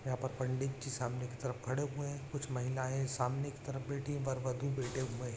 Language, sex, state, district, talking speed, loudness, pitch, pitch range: Hindi, male, Chhattisgarh, Raigarh, 245 wpm, -39 LUFS, 130 Hz, 130-140 Hz